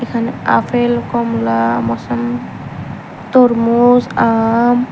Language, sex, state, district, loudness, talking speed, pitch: Bengali, female, Tripura, Unakoti, -14 LUFS, 75 wpm, 230 Hz